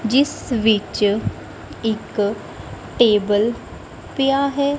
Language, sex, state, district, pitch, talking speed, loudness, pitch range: Punjabi, female, Punjab, Kapurthala, 230 Hz, 75 wpm, -19 LUFS, 210-275 Hz